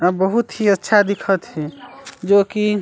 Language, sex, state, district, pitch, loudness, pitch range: Chhattisgarhi, male, Chhattisgarh, Sarguja, 200 Hz, -17 LUFS, 190-210 Hz